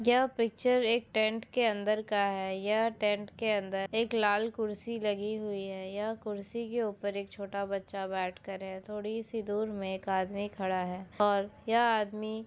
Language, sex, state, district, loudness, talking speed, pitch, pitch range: Hindi, female, Jharkhand, Jamtara, -32 LUFS, 190 wpm, 210 Hz, 195-225 Hz